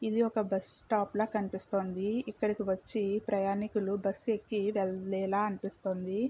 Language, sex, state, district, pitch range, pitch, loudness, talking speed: Telugu, female, Andhra Pradesh, Chittoor, 195-215 Hz, 205 Hz, -33 LUFS, 125 wpm